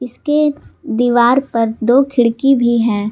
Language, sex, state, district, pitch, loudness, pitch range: Hindi, female, Jharkhand, Palamu, 240 Hz, -14 LUFS, 230-270 Hz